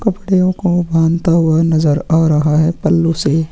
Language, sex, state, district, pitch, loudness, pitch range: Hindi, male, Chhattisgarh, Sukma, 165 Hz, -13 LUFS, 160-175 Hz